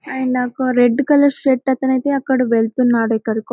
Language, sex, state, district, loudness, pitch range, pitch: Telugu, female, Telangana, Karimnagar, -16 LUFS, 245-270 Hz, 255 Hz